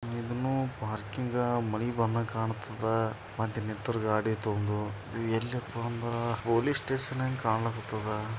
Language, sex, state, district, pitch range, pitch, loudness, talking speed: Kannada, male, Karnataka, Bijapur, 110-120 Hz, 115 Hz, -32 LUFS, 115 wpm